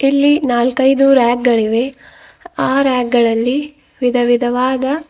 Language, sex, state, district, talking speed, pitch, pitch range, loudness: Kannada, female, Karnataka, Bidar, 105 wpm, 260 Hz, 245-275 Hz, -14 LUFS